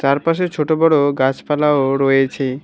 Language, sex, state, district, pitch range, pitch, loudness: Bengali, male, West Bengal, Alipurduar, 135-155 Hz, 140 Hz, -16 LUFS